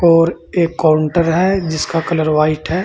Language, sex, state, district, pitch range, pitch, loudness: Hindi, male, Uttar Pradesh, Saharanpur, 155-170 Hz, 165 Hz, -15 LUFS